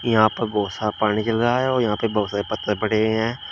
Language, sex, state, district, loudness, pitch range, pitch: Hindi, male, Uttar Pradesh, Shamli, -21 LUFS, 105-115 Hz, 110 Hz